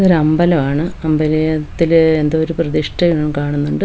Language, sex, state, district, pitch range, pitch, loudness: Malayalam, female, Kerala, Wayanad, 150-165 Hz, 155 Hz, -15 LUFS